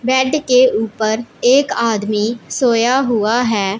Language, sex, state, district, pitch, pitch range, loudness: Hindi, female, Punjab, Pathankot, 235 Hz, 220-255 Hz, -15 LUFS